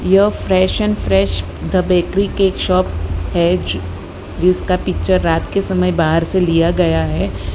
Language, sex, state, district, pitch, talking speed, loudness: Hindi, female, Gujarat, Valsad, 165 Hz, 150 wpm, -16 LUFS